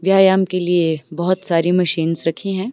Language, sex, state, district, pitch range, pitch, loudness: Hindi, female, Himachal Pradesh, Shimla, 165-190 Hz, 180 Hz, -17 LUFS